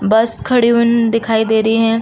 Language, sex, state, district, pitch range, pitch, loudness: Hindi, female, Uttar Pradesh, Varanasi, 220-235 Hz, 225 Hz, -13 LUFS